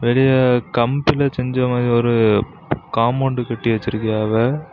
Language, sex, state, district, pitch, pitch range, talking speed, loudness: Tamil, male, Tamil Nadu, Kanyakumari, 120 Hz, 115-130 Hz, 100 wpm, -18 LUFS